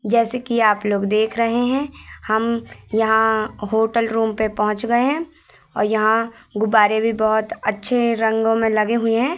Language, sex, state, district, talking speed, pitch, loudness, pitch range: Hindi, female, Madhya Pradesh, Katni, 165 wpm, 225 Hz, -19 LUFS, 215-235 Hz